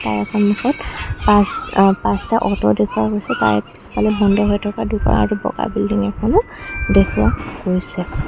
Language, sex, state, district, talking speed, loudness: Assamese, female, Assam, Kamrup Metropolitan, 145 wpm, -17 LUFS